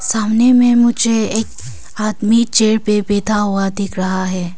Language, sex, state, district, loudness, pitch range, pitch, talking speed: Hindi, female, Arunachal Pradesh, Papum Pare, -14 LUFS, 195-225 Hz, 215 Hz, 155 wpm